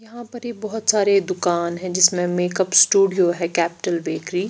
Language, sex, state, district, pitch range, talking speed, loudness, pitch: Hindi, female, Chandigarh, Chandigarh, 175-210 Hz, 185 wpm, -19 LUFS, 185 Hz